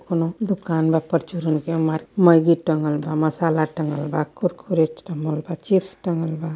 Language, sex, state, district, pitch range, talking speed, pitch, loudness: Hindi, female, Uttar Pradesh, Varanasi, 155-170 Hz, 165 wpm, 165 Hz, -21 LUFS